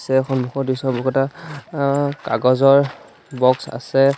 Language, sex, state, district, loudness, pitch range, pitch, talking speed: Assamese, male, Assam, Sonitpur, -19 LUFS, 130-140 Hz, 135 Hz, 115 wpm